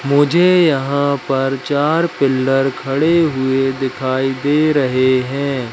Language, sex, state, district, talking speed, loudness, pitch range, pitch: Hindi, male, Madhya Pradesh, Katni, 115 wpm, -15 LUFS, 130-145 Hz, 135 Hz